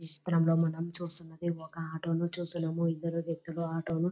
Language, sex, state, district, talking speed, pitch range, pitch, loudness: Telugu, female, Telangana, Nalgonda, 190 wpm, 165-170 Hz, 165 Hz, -33 LUFS